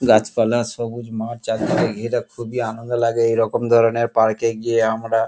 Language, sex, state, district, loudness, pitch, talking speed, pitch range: Bengali, male, West Bengal, Kolkata, -20 LUFS, 115 Hz, 135 wpm, 115-120 Hz